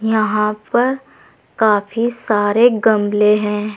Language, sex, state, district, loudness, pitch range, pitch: Hindi, female, Uttar Pradesh, Saharanpur, -16 LUFS, 210-235 Hz, 215 Hz